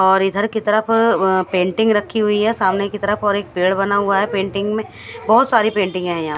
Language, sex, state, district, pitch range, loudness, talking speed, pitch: Hindi, female, Odisha, Khordha, 190-215 Hz, -17 LUFS, 225 wpm, 200 Hz